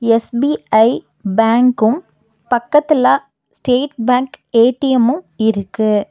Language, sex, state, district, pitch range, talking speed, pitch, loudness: Tamil, female, Tamil Nadu, Nilgiris, 225-265 Hz, 70 wpm, 245 Hz, -15 LUFS